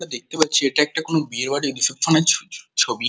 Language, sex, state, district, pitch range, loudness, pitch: Bengali, male, West Bengal, Kolkata, 135-160 Hz, -20 LUFS, 150 Hz